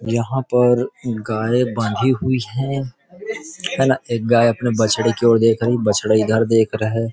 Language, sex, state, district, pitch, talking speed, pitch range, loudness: Hindi, male, Chhattisgarh, Rajnandgaon, 120 Hz, 175 wpm, 115-130 Hz, -18 LUFS